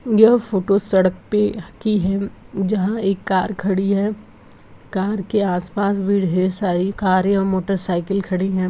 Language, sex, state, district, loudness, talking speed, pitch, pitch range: Hindi, female, Bihar, Gopalganj, -19 LUFS, 165 wpm, 195 Hz, 190-205 Hz